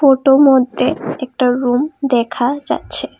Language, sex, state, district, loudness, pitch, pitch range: Bengali, female, Assam, Kamrup Metropolitan, -15 LUFS, 265 Hz, 245-280 Hz